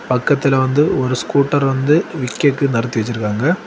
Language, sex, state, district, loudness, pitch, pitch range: Tamil, male, Tamil Nadu, Kanyakumari, -16 LUFS, 135 Hz, 125-145 Hz